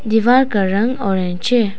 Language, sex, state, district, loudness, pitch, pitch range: Hindi, female, Arunachal Pradesh, Papum Pare, -16 LUFS, 215 Hz, 195-245 Hz